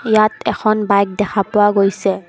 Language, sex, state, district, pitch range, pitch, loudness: Assamese, female, Assam, Kamrup Metropolitan, 200-215 Hz, 205 Hz, -15 LUFS